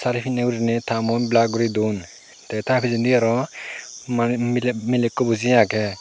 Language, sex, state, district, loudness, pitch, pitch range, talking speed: Chakma, male, Tripura, Unakoti, -21 LUFS, 120 Hz, 115-125 Hz, 170 wpm